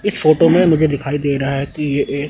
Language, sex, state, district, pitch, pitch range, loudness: Hindi, male, Chandigarh, Chandigarh, 145 Hz, 140-160 Hz, -16 LUFS